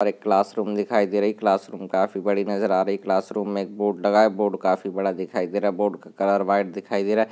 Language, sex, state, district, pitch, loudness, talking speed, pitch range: Hindi, male, Rajasthan, Churu, 100 Hz, -23 LUFS, 260 wpm, 95-105 Hz